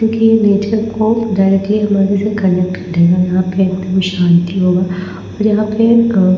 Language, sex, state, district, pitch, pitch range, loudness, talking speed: Hindi, female, Bihar, Patna, 195 Hz, 185-215 Hz, -13 LUFS, 170 wpm